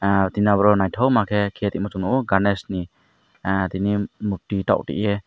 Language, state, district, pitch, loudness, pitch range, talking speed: Kokborok, Tripura, Dhalai, 100 Hz, -21 LUFS, 95-105 Hz, 195 wpm